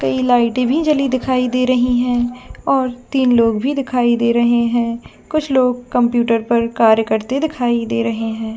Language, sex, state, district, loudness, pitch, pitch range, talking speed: Hindi, female, Jharkhand, Jamtara, -16 LUFS, 245 Hz, 230-255 Hz, 190 wpm